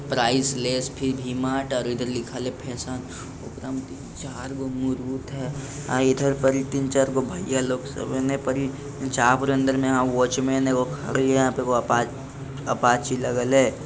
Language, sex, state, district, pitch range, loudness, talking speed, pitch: Hindi, male, Bihar, Lakhisarai, 125-135 Hz, -24 LUFS, 145 wpm, 130 Hz